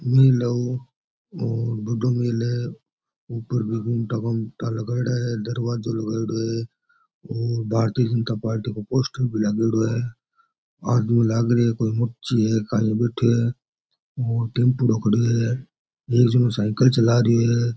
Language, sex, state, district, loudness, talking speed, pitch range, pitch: Rajasthani, male, Rajasthan, Churu, -22 LUFS, 150 wpm, 115-120 Hz, 115 Hz